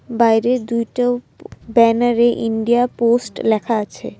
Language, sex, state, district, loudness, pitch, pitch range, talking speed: Bengali, female, Assam, Kamrup Metropolitan, -17 LUFS, 235 Hz, 225-240 Hz, 115 wpm